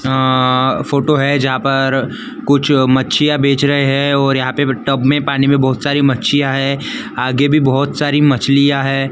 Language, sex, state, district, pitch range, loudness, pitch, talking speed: Hindi, male, Maharashtra, Gondia, 135-145 Hz, -14 LUFS, 140 Hz, 180 wpm